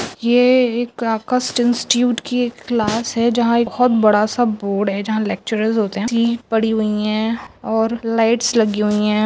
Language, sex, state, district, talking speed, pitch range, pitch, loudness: Chhattisgarhi, female, Chhattisgarh, Rajnandgaon, 160 wpm, 215-240 Hz, 225 Hz, -17 LUFS